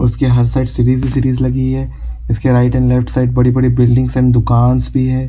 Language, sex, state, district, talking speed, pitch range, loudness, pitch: Hindi, male, Chhattisgarh, Raigarh, 240 wpm, 120-130 Hz, -13 LUFS, 125 Hz